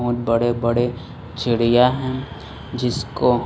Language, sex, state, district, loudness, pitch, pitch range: Hindi, male, Chhattisgarh, Raipur, -20 LUFS, 120 Hz, 120-125 Hz